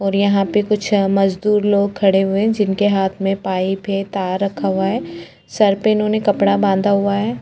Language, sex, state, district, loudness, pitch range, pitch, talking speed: Hindi, female, Chhattisgarh, Korba, -17 LUFS, 195-205 Hz, 200 Hz, 200 wpm